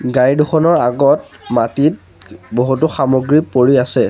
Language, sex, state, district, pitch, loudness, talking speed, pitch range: Assamese, male, Assam, Sonitpur, 130 Hz, -14 LUFS, 115 wpm, 120-150 Hz